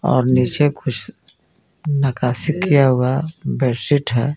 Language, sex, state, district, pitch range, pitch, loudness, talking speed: Hindi, male, Jharkhand, Garhwa, 125-145 Hz, 135 Hz, -17 LUFS, 110 wpm